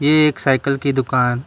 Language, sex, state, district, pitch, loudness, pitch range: Hindi, male, Karnataka, Bangalore, 135 Hz, -17 LUFS, 130-145 Hz